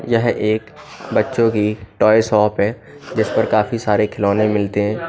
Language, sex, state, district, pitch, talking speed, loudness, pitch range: Hindi, male, Bihar, Katihar, 110 Hz, 165 wpm, -17 LUFS, 105-115 Hz